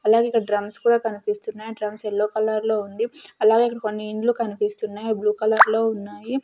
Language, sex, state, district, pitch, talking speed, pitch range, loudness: Telugu, female, Andhra Pradesh, Sri Satya Sai, 220 Hz, 185 wpm, 210-230 Hz, -22 LUFS